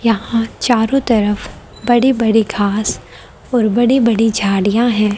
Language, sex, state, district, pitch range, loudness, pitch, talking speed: Hindi, female, Haryana, Rohtak, 210-240 Hz, -15 LUFS, 225 Hz, 125 wpm